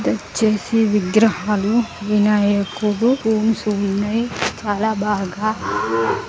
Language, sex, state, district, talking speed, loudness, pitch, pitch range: Telugu, female, Andhra Pradesh, Srikakulam, 65 wpm, -19 LUFS, 210 Hz, 205-220 Hz